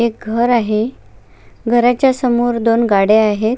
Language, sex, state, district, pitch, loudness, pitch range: Marathi, female, Maharashtra, Sindhudurg, 235 Hz, -14 LUFS, 220-240 Hz